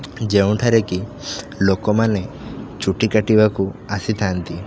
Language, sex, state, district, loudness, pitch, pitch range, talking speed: Odia, male, Odisha, Khordha, -19 LUFS, 105 Hz, 95-110 Hz, 75 wpm